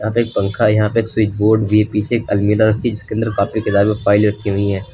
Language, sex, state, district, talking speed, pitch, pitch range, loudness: Hindi, male, Uttar Pradesh, Lucknow, 255 wpm, 105 Hz, 100-110 Hz, -16 LUFS